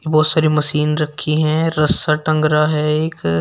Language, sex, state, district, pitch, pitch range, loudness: Hindi, male, Uttar Pradesh, Shamli, 155 Hz, 150-155 Hz, -16 LUFS